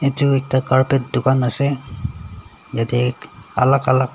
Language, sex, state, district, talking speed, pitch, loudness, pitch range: Nagamese, male, Nagaland, Dimapur, 115 wpm, 130 Hz, -18 LUFS, 120-135 Hz